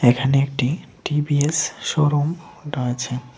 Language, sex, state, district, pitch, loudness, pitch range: Bengali, male, Tripura, West Tripura, 145 Hz, -21 LUFS, 125-150 Hz